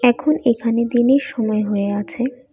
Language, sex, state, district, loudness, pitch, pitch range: Bengali, female, Assam, Kamrup Metropolitan, -18 LUFS, 240 Hz, 215-250 Hz